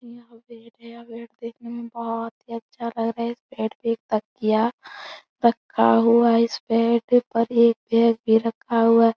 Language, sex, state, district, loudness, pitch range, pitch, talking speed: Hindi, female, Bihar, Supaul, -21 LUFS, 230-235 Hz, 230 Hz, 190 wpm